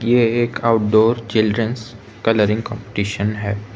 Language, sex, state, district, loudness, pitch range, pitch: Hindi, male, Arunachal Pradesh, Lower Dibang Valley, -18 LUFS, 105-115 Hz, 110 Hz